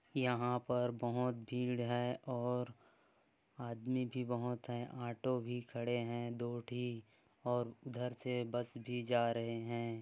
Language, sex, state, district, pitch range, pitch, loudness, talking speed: Hindi, male, Chhattisgarh, Korba, 120-125 Hz, 120 Hz, -40 LUFS, 145 wpm